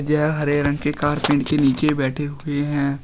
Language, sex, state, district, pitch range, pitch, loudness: Hindi, male, Uttar Pradesh, Shamli, 140-150 Hz, 145 Hz, -20 LUFS